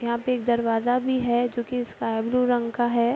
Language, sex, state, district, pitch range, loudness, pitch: Hindi, female, Bihar, Araria, 235-245 Hz, -24 LUFS, 240 Hz